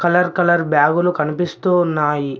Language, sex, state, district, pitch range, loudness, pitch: Telugu, male, Telangana, Mahabubabad, 150-175 Hz, -17 LUFS, 170 Hz